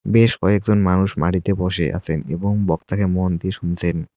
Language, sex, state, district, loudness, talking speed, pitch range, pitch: Bengali, male, West Bengal, Cooch Behar, -19 LUFS, 160 wpm, 85-100 Hz, 95 Hz